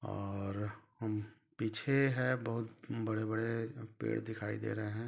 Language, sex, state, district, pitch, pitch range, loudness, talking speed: Hindi, male, Chhattisgarh, Rajnandgaon, 110 Hz, 105-115 Hz, -38 LUFS, 130 wpm